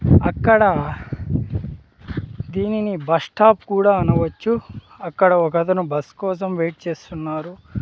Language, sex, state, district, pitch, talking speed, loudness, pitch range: Telugu, male, Andhra Pradesh, Sri Satya Sai, 175 Hz, 85 wpm, -19 LUFS, 165-195 Hz